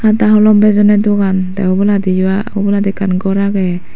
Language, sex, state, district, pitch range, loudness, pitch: Chakma, female, Tripura, Dhalai, 190-210 Hz, -12 LUFS, 200 Hz